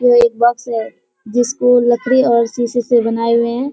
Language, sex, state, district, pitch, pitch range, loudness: Hindi, female, Bihar, Kishanganj, 240 Hz, 235-245 Hz, -14 LUFS